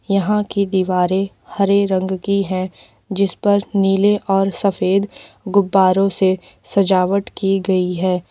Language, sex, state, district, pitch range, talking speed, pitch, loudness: Hindi, female, Uttar Pradesh, Lalitpur, 185-200 Hz, 130 wpm, 195 Hz, -17 LUFS